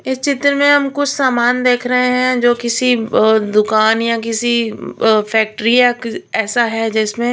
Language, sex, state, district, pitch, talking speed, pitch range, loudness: Hindi, female, Chhattisgarh, Raipur, 240 Hz, 190 wpm, 225-250 Hz, -14 LUFS